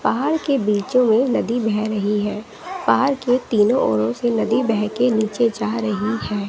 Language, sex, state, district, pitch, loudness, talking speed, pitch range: Hindi, female, Bihar, West Champaran, 225 Hz, -19 LUFS, 175 wpm, 210-250 Hz